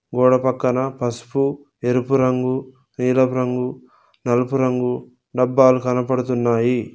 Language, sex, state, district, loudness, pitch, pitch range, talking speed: Telugu, male, Telangana, Mahabubabad, -19 LUFS, 125 Hz, 125-130 Hz, 95 wpm